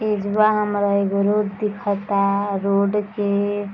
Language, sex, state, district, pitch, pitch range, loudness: Bhojpuri, female, Bihar, East Champaran, 205 Hz, 200-210 Hz, -20 LUFS